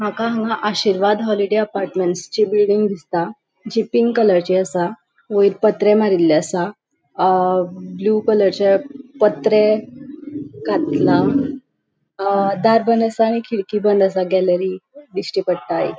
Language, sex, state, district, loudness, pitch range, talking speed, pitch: Konkani, female, Goa, North and South Goa, -17 LUFS, 185-225 Hz, 125 wpm, 210 Hz